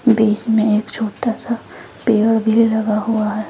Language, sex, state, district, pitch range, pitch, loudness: Hindi, female, Uttar Pradesh, Lucknow, 215-230 Hz, 220 Hz, -16 LUFS